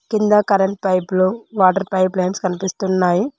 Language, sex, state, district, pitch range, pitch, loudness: Telugu, female, Telangana, Mahabubabad, 185-200 Hz, 190 Hz, -17 LUFS